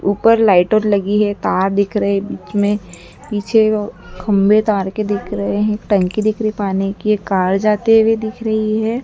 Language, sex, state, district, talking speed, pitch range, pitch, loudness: Hindi, female, Madhya Pradesh, Dhar, 205 wpm, 200-215 Hz, 210 Hz, -16 LUFS